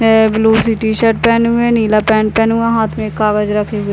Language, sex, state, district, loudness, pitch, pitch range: Hindi, male, Bihar, Purnia, -13 LUFS, 220 Hz, 215-225 Hz